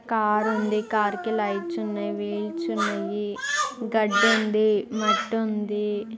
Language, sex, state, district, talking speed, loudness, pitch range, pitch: Telugu, female, Andhra Pradesh, Guntur, 95 wpm, -25 LUFS, 200-220 Hz, 210 Hz